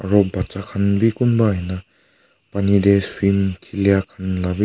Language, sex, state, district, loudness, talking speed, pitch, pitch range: Nagamese, male, Nagaland, Kohima, -19 LUFS, 165 wpm, 100 Hz, 95-100 Hz